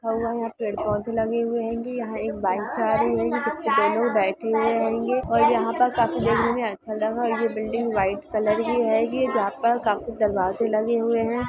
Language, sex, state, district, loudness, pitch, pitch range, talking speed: Hindi, female, Bihar, Gopalganj, -23 LUFS, 225 Hz, 215-235 Hz, 200 wpm